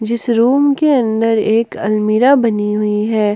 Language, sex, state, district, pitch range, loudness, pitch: Hindi, female, Jharkhand, Ranchi, 215-240 Hz, -14 LUFS, 225 Hz